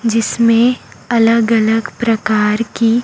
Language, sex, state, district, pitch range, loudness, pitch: Hindi, female, Chhattisgarh, Raipur, 225-230 Hz, -14 LUFS, 230 Hz